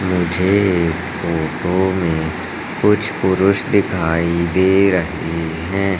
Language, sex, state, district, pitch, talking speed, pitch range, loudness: Hindi, male, Madhya Pradesh, Katni, 90 Hz, 100 wpm, 85-95 Hz, -17 LUFS